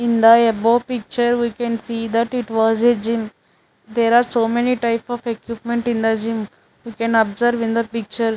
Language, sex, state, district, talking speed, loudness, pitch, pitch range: English, female, Chandigarh, Chandigarh, 200 wpm, -18 LUFS, 230 Hz, 225-240 Hz